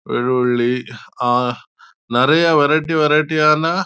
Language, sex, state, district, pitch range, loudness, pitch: Tamil, male, Karnataka, Chamarajanagar, 125-155 Hz, -16 LUFS, 150 Hz